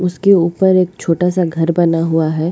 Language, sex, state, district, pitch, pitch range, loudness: Hindi, female, Goa, North and South Goa, 175 Hz, 165-180 Hz, -14 LUFS